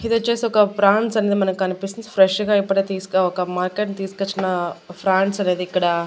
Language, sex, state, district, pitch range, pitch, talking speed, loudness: Telugu, female, Andhra Pradesh, Annamaya, 185-205 Hz, 195 Hz, 170 wpm, -20 LUFS